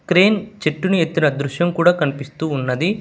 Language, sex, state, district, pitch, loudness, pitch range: Telugu, male, Telangana, Hyderabad, 165 Hz, -18 LUFS, 145-185 Hz